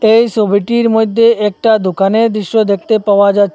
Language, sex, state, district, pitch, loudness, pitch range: Bengali, male, Assam, Hailakandi, 220 Hz, -11 LUFS, 200-225 Hz